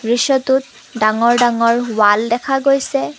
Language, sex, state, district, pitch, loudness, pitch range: Assamese, female, Assam, Kamrup Metropolitan, 240 Hz, -15 LUFS, 225-270 Hz